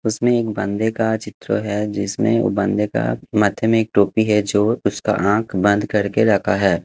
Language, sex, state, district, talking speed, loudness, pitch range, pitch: Hindi, male, Haryana, Jhajjar, 190 wpm, -19 LUFS, 100-110 Hz, 105 Hz